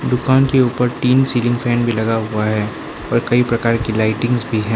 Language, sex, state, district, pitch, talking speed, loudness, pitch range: Hindi, male, Arunachal Pradesh, Lower Dibang Valley, 120 Hz, 215 wpm, -16 LUFS, 110-125 Hz